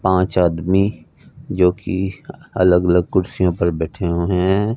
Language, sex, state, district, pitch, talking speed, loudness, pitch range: Hindi, male, Punjab, Fazilka, 90 Hz, 140 wpm, -18 LUFS, 90-95 Hz